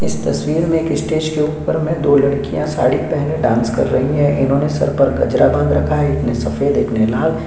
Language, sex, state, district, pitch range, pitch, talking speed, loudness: Hindi, male, Chhattisgarh, Sukma, 130-155 Hz, 145 Hz, 225 wpm, -16 LUFS